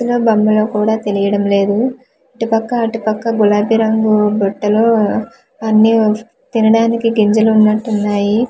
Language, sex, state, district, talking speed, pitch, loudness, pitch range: Telugu, female, Andhra Pradesh, Manyam, 120 wpm, 220 Hz, -14 LUFS, 210-225 Hz